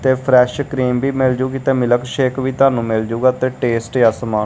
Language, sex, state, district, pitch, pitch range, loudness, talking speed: Punjabi, male, Punjab, Kapurthala, 130 Hz, 120-130 Hz, -16 LUFS, 230 wpm